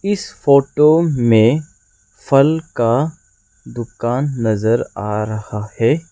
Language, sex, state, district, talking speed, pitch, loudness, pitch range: Hindi, male, Arunachal Pradesh, Lower Dibang Valley, 100 wpm, 120 Hz, -16 LUFS, 105-150 Hz